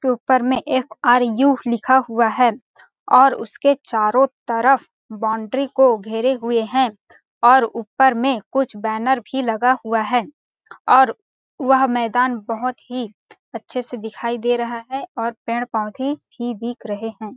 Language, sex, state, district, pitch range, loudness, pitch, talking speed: Hindi, female, Chhattisgarh, Balrampur, 230-260 Hz, -19 LUFS, 245 Hz, 150 wpm